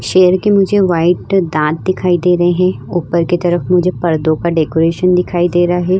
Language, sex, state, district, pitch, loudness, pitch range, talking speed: Hindi, female, Uttar Pradesh, Hamirpur, 175 Hz, -13 LUFS, 170-180 Hz, 200 wpm